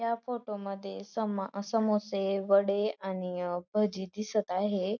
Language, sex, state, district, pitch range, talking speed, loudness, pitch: Marathi, female, Maharashtra, Dhule, 190-210 Hz, 120 wpm, -32 LUFS, 200 Hz